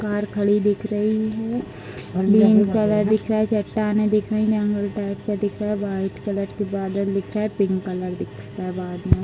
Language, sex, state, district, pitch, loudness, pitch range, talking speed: Hindi, female, Uttar Pradesh, Deoria, 205 Hz, -22 LUFS, 200-215 Hz, 215 wpm